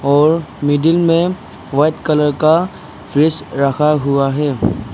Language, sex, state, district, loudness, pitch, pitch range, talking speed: Hindi, male, Arunachal Pradesh, Papum Pare, -15 LUFS, 150 Hz, 140-160 Hz, 120 wpm